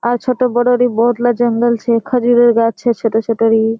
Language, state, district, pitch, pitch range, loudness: Surjapuri, Bihar, Kishanganj, 240 Hz, 230-245 Hz, -14 LUFS